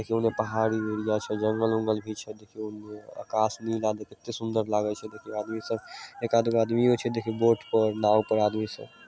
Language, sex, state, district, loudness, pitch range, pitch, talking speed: Maithili, male, Bihar, Samastipur, -27 LUFS, 105-115 Hz, 110 Hz, 210 wpm